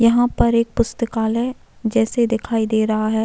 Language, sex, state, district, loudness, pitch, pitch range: Hindi, female, Uttarakhand, Tehri Garhwal, -19 LUFS, 230 Hz, 220-235 Hz